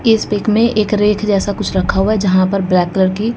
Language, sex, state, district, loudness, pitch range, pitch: Hindi, female, Haryana, Jhajjar, -14 LUFS, 190-215 Hz, 205 Hz